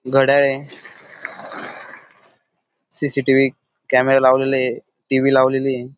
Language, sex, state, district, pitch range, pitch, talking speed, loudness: Marathi, male, Maharashtra, Dhule, 130-135 Hz, 135 Hz, 90 wpm, -17 LUFS